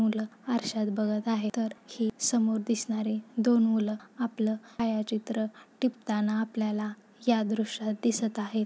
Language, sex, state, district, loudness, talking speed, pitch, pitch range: Marathi, female, Maharashtra, Nagpur, -30 LUFS, 125 wpm, 220 Hz, 215-230 Hz